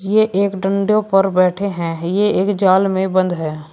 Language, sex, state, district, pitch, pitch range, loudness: Hindi, male, Uttar Pradesh, Shamli, 190 Hz, 185-200 Hz, -16 LUFS